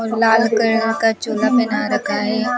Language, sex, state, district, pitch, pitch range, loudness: Hindi, female, Rajasthan, Bikaner, 225 Hz, 220-225 Hz, -17 LUFS